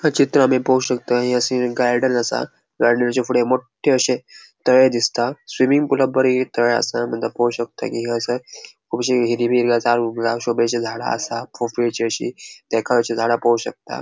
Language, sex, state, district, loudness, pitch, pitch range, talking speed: Konkani, male, Goa, North and South Goa, -19 LUFS, 120 Hz, 120-130 Hz, 180 wpm